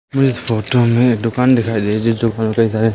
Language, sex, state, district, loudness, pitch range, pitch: Hindi, male, Madhya Pradesh, Katni, -15 LUFS, 110-125 Hz, 115 Hz